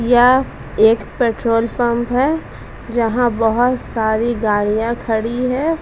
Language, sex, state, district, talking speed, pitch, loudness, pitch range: Hindi, female, Uttar Pradesh, Jalaun, 115 wpm, 235 Hz, -17 LUFS, 225-245 Hz